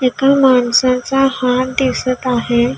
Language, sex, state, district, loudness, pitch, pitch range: Marathi, female, Maharashtra, Gondia, -14 LUFS, 255 Hz, 250-265 Hz